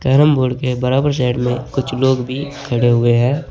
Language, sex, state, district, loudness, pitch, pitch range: Hindi, male, Uttar Pradesh, Saharanpur, -16 LUFS, 130 Hz, 125-135 Hz